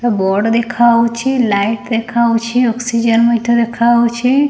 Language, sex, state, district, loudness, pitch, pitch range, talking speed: Odia, female, Odisha, Khordha, -13 LUFS, 235 Hz, 230-240 Hz, 105 wpm